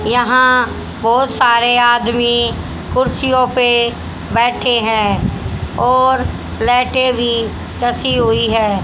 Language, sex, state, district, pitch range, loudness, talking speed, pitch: Hindi, female, Haryana, Charkhi Dadri, 235-250 Hz, -14 LUFS, 95 wpm, 240 Hz